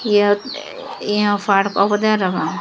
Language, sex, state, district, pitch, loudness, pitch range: Chakma, female, Tripura, Dhalai, 205 Hz, -17 LUFS, 200-215 Hz